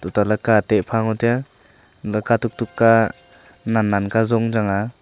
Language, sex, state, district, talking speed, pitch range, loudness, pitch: Wancho, male, Arunachal Pradesh, Longding, 190 wpm, 105-115 Hz, -19 LUFS, 110 Hz